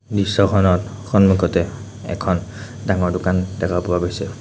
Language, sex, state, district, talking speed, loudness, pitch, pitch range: Assamese, male, Assam, Sonitpur, 110 wpm, -19 LUFS, 95 Hz, 90-105 Hz